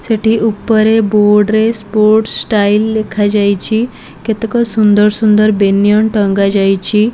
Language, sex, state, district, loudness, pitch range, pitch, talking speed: Odia, female, Odisha, Malkangiri, -11 LUFS, 205-220 Hz, 215 Hz, 110 wpm